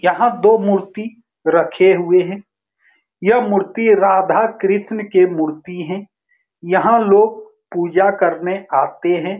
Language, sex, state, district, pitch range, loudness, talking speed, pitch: Hindi, male, Bihar, Saran, 180-220 Hz, -15 LUFS, 120 wpm, 195 Hz